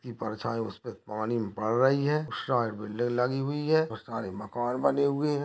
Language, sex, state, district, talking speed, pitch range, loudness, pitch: Hindi, male, Maharashtra, Aurangabad, 220 wpm, 110-140 Hz, -29 LUFS, 120 Hz